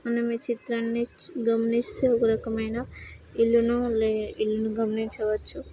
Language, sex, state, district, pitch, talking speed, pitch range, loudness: Telugu, female, Andhra Pradesh, Srikakulam, 230 Hz, 95 wpm, 220-235 Hz, -26 LUFS